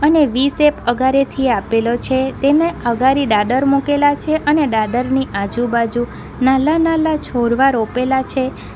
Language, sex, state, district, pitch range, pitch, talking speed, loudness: Gujarati, female, Gujarat, Valsad, 240-290 Hz, 265 Hz, 130 wpm, -16 LUFS